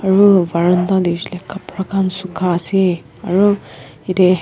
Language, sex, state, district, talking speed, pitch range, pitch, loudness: Nagamese, female, Nagaland, Kohima, 120 wpm, 175-190 Hz, 185 Hz, -16 LUFS